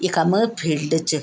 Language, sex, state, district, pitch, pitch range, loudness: Garhwali, female, Uttarakhand, Tehri Garhwal, 165 Hz, 155-185 Hz, -20 LUFS